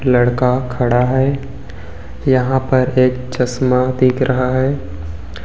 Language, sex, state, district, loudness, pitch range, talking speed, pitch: Hindi, male, Chhattisgarh, Raipur, -16 LUFS, 120-130 Hz, 110 wpm, 125 Hz